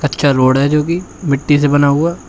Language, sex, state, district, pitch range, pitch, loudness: Hindi, male, Uttar Pradesh, Shamli, 140-150 Hz, 145 Hz, -13 LUFS